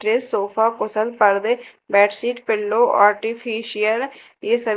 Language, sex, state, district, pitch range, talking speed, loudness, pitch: Hindi, female, Madhya Pradesh, Dhar, 210-235 Hz, 115 wpm, -19 LUFS, 225 Hz